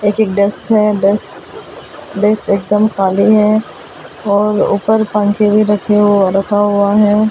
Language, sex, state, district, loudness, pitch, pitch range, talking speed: Hindi, female, Delhi, New Delhi, -12 LUFS, 210 Hz, 200-210 Hz, 150 wpm